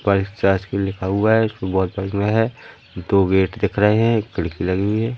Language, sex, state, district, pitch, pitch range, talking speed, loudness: Hindi, male, Madhya Pradesh, Katni, 100 Hz, 95-110 Hz, 185 wpm, -19 LUFS